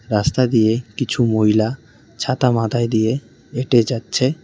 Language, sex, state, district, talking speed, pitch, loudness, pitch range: Bengali, male, West Bengal, Cooch Behar, 120 wpm, 120 Hz, -18 LUFS, 110-130 Hz